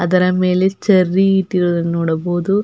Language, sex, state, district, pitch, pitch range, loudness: Kannada, female, Karnataka, Belgaum, 180 Hz, 175-190 Hz, -15 LUFS